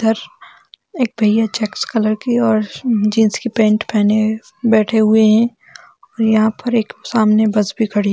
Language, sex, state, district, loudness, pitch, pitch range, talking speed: Hindi, female, Bihar, Sitamarhi, -16 LUFS, 220 Hz, 215-235 Hz, 170 wpm